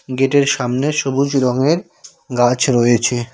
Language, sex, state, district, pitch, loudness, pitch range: Bengali, male, West Bengal, Cooch Behar, 130 Hz, -16 LUFS, 120-140 Hz